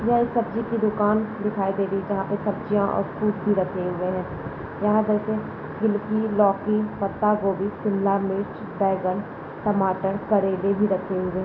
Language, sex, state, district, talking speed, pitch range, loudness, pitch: Kumaoni, female, Uttarakhand, Uttarkashi, 170 wpm, 195-210 Hz, -24 LUFS, 200 Hz